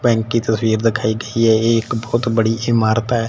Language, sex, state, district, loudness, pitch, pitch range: Hindi, male, Punjab, Fazilka, -17 LUFS, 115 Hz, 110-115 Hz